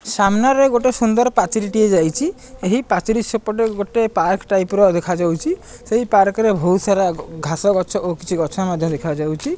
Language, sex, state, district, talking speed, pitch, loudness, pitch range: Odia, male, Odisha, Nuapada, 155 wpm, 205 Hz, -18 LUFS, 180-230 Hz